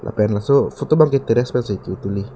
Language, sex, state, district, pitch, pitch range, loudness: Karbi, male, Assam, Karbi Anglong, 120 Hz, 105-140 Hz, -18 LUFS